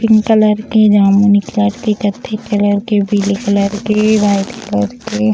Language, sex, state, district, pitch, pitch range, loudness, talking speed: Hindi, female, Bihar, Sitamarhi, 205 Hz, 200-215 Hz, -13 LUFS, 180 wpm